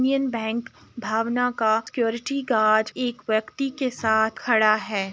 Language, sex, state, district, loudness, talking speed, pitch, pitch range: Hindi, female, Uttar Pradesh, Jalaun, -23 LUFS, 140 wpm, 230 Hz, 220-250 Hz